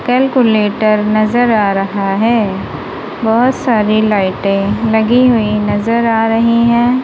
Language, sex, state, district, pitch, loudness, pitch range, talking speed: Hindi, female, Punjab, Kapurthala, 220 Hz, -12 LUFS, 210-235 Hz, 120 wpm